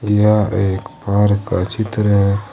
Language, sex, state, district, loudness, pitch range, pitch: Hindi, male, Jharkhand, Ranchi, -16 LUFS, 100-105 Hz, 105 Hz